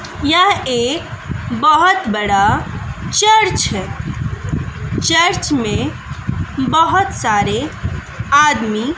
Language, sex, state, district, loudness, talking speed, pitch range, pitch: Hindi, female, Bihar, West Champaran, -15 LUFS, 75 wpm, 245-370 Hz, 305 Hz